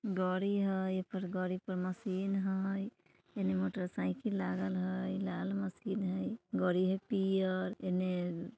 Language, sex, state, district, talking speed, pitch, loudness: Bajjika, female, Bihar, Vaishali, 135 wpm, 185 Hz, -36 LUFS